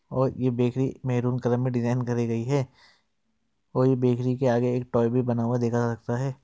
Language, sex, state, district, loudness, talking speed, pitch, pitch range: Hindi, male, Uttarakhand, Uttarkashi, -25 LUFS, 225 wpm, 125 Hz, 120-130 Hz